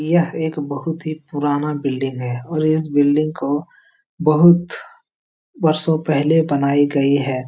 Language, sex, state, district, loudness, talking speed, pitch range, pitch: Hindi, male, Bihar, Jahanabad, -18 LUFS, 135 wpm, 145-160 Hz, 155 Hz